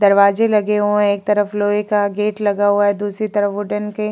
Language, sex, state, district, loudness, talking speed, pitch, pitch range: Hindi, female, Uttar Pradesh, Jalaun, -17 LUFS, 245 wpm, 205 Hz, 205-210 Hz